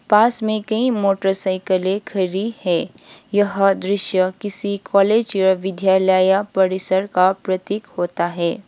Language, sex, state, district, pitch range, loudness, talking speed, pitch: Hindi, female, Sikkim, Gangtok, 185-205 Hz, -19 LUFS, 115 wpm, 195 Hz